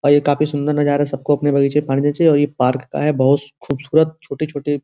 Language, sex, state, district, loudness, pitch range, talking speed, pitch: Hindi, male, Uttar Pradesh, Gorakhpur, -17 LUFS, 140-150 Hz, 270 wpm, 145 Hz